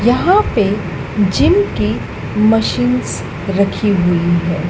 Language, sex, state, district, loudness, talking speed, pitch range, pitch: Hindi, female, Madhya Pradesh, Dhar, -15 LUFS, 100 wpm, 125-205 Hz, 175 Hz